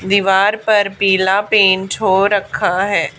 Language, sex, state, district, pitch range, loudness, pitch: Hindi, female, Haryana, Charkhi Dadri, 190-205 Hz, -14 LUFS, 195 Hz